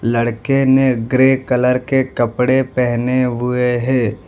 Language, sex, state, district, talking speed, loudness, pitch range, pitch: Hindi, male, Gujarat, Valsad, 125 wpm, -16 LUFS, 120-130 Hz, 125 Hz